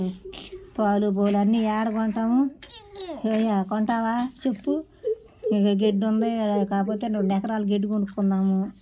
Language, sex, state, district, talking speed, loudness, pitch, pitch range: Telugu, female, Andhra Pradesh, Guntur, 110 wpm, -24 LUFS, 220 Hz, 205-240 Hz